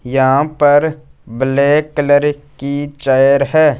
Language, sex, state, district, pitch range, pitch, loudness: Hindi, male, Punjab, Fazilka, 135-145 Hz, 145 Hz, -13 LUFS